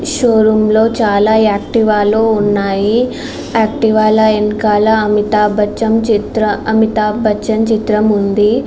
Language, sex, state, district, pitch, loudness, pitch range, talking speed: Telugu, female, Andhra Pradesh, Srikakulam, 215 Hz, -12 LUFS, 210-220 Hz, 85 wpm